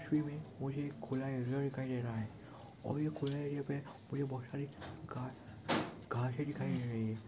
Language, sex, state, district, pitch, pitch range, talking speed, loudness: Hindi, male, Goa, North and South Goa, 135 Hz, 120-145 Hz, 195 wpm, -40 LUFS